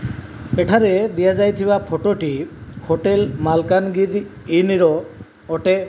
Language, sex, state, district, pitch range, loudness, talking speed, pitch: Odia, male, Odisha, Malkangiri, 140-195 Hz, -18 LUFS, 100 wpm, 180 Hz